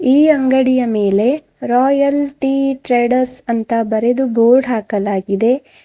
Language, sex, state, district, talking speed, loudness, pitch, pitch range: Kannada, female, Karnataka, Bidar, 105 wpm, -15 LUFS, 250 Hz, 230-270 Hz